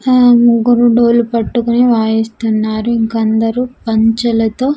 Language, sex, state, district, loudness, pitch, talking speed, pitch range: Telugu, female, Andhra Pradesh, Sri Satya Sai, -12 LUFS, 235 Hz, 100 wpm, 225-240 Hz